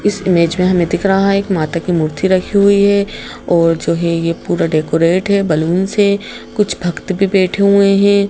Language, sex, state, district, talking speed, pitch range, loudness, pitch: Hindi, female, Madhya Pradesh, Bhopal, 210 wpm, 170-200 Hz, -14 LUFS, 185 Hz